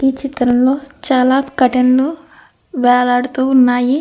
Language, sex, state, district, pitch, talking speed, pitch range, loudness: Telugu, female, Andhra Pradesh, Krishna, 260 Hz, 105 wpm, 250-275 Hz, -14 LUFS